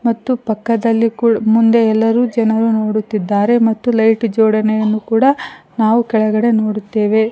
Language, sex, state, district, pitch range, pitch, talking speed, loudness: Kannada, female, Karnataka, Koppal, 215-230 Hz, 225 Hz, 115 wpm, -14 LUFS